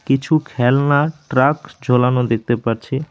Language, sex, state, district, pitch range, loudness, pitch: Bengali, male, West Bengal, Alipurduar, 125-150 Hz, -17 LUFS, 135 Hz